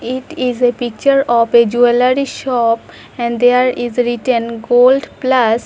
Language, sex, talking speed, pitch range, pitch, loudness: English, female, 150 wpm, 235-255 Hz, 245 Hz, -14 LUFS